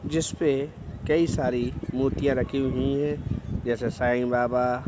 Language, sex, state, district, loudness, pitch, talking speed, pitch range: Hindi, male, Bihar, Araria, -26 LUFS, 130 Hz, 125 wpm, 125-140 Hz